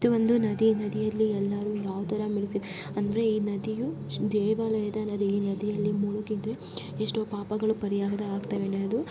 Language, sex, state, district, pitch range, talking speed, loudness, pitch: Kannada, female, Karnataka, Raichur, 200-220 Hz, 105 wpm, -29 LUFS, 210 Hz